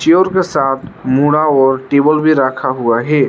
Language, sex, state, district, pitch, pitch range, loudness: Hindi, male, Arunachal Pradesh, Lower Dibang Valley, 140 Hz, 130-155 Hz, -13 LUFS